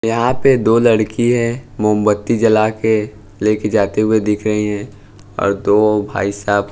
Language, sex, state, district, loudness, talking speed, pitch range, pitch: Hindi, male, Punjab, Pathankot, -15 LUFS, 150 wpm, 105-115 Hz, 105 Hz